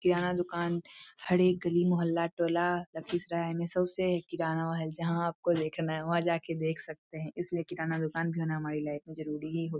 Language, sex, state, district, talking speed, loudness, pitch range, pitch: Hindi, female, Bihar, Lakhisarai, 215 wpm, -32 LUFS, 160-175 Hz, 170 Hz